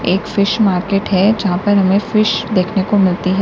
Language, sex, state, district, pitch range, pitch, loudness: Hindi, female, Uttar Pradesh, Lalitpur, 185-205 Hz, 195 Hz, -14 LUFS